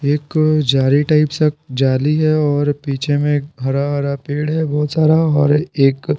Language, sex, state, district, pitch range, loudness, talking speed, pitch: Hindi, male, Bihar, Patna, 140-155 Hz, -16 LUFS, 155 wpm, 145 Hz